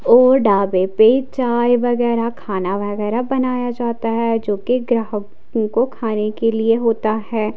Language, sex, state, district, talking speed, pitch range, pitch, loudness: Hindi, female, Himachal Pradesh, Shimla, 150 wpm, 215-245 Hz, 230 Hz, -18 LUFS